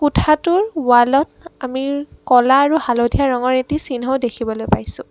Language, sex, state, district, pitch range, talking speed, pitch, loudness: Assamese, female, Assam, Kamrup Metropolitan, 245-295 Hz, 130 wpm, 265 Hz, -16 LUFS